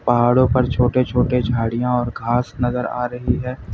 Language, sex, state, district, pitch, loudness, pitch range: Hindi, male, Uttar Pradesh, Lalitpur, 125 Hz, -19 LUFS, 120-125 Hz